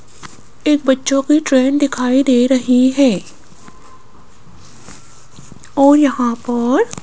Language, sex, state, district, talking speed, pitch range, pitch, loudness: Hindi, female, Rajasthan, Jaipur, 100 wpm, 180-275 Hz, 255 Hz, -14 LUFS